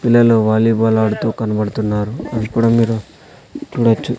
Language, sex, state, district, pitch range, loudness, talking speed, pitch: Telugu, male, Andhra Pradesh, Sri Satya Sai, 110-115 Hz, -16 LUFS, 115 wpm, 115 Hz